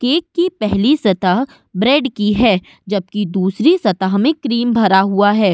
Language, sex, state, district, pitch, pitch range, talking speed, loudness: Hindi, female, Uttar Pradesh, Budaun, 210 Hz, 195-270 Hz, 160 wpm, -15 LUFS